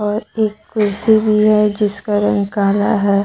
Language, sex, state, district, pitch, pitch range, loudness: Hindi, female, Jharkhand, Deoghar, 210 Hz, 205-215 Hz, -15 LUFS